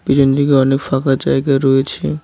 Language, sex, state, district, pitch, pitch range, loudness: Bengali, male, West Bengal, Cooch Behar, 135 Hz, 135-140 Hz, -14 LUFS